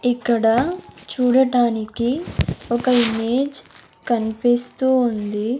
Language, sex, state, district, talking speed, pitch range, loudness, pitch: Telugu, male, Andhra Pradesh, Sri Satya Sai, 65 wpm, 225-250 Hz, -20 LUFS, 240 Hz